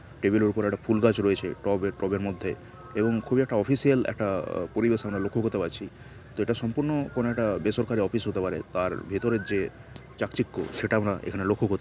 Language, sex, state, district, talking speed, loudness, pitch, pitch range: Bengali, male, West Bengal, Purulia, 195 wpm, -27 LUFS, 110 Hz, 100-115 Hz